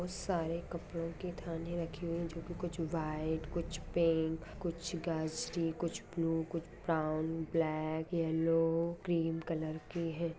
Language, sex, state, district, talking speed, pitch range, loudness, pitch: Hindi, female, Jharkhand, Sahebganj, 145 wpm, 160-170 Hz, -37 LUFS, 165 Hz